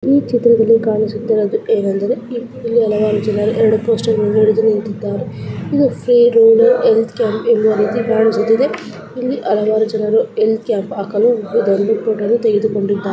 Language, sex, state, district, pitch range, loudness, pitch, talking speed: Kannada, female, Karnataka, Gulbarga, 215-235 Hz, -15 LUFS, 220 Hz, 120 wpm